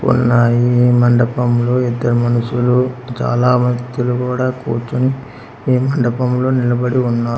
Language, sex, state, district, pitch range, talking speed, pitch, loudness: Telugu, male, Andhra Pradesh, Manyam, 120-125 Hz, 95 wpm, 125 Hz, -15 LUFS